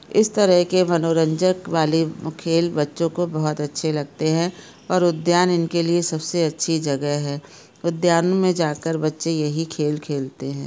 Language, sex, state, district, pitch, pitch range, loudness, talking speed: Hindi, female, Bihar, Araria, 165 Hz, 150-175 Hz, -21 LUFS, 160 wpm